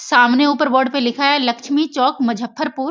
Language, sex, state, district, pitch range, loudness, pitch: Hindi, female, Bihar, Sitamarhi, 245-290 Hz, -16 LUFS, 270 Hz